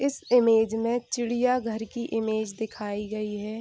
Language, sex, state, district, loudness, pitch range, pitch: Hindi, female, Bihar, Saharsa, -26 LUFS, 220-240 Hz, 225 Hz